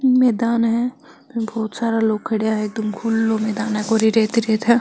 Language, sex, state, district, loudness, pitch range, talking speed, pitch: Marwari, female, Rajasthan, Nagaur, -19 LUFS, 220-235 Hz, 200 wpm, 225 Hz